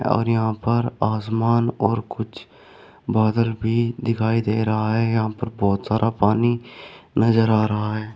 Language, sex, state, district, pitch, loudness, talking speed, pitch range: Hindi, male, Uttar Pradesh, Shamli, 115 Hz, -21 LUFS, 155 wpm, 110-115 Hz